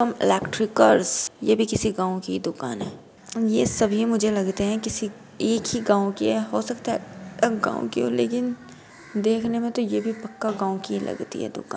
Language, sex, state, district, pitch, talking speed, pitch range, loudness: Bhojpuri, female, Uttar Pradesh, Deoria, 215 Hz, 215 wpm, 190-225 Hz, -24 LUFS